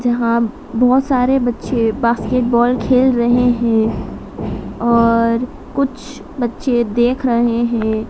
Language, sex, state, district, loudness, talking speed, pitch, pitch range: Hindi, female, Madhya Pradesh, Dhar, -16 LUFS, 105 wpm, 240 Hz, 235-250 Hz